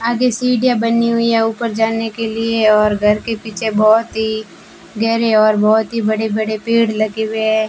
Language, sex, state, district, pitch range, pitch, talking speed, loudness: Hindi, female, Rajasthan, Bikaner, 215-230 Hz, 220 Hz, 195 wpm, -15 LUFS